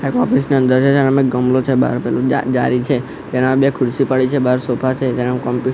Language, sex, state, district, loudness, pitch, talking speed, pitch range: Gujarati, male, Gujarat, Gandhinagar, -16 LUFS, 130 Hz, 240 wpm, 125-135 Hz